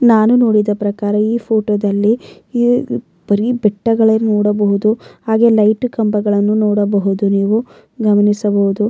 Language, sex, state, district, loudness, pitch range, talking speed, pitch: Kannada, female, Karnataka, Mysore, -14 LUFS, 205-225 Hz, 95 wpm, 210 Hz